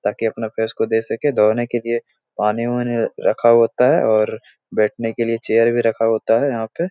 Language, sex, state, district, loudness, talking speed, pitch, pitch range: Hindi, male, Bihar, Jahanabad, -18 LUFS, 225 wpm, 115 Hz, 110-120 Hz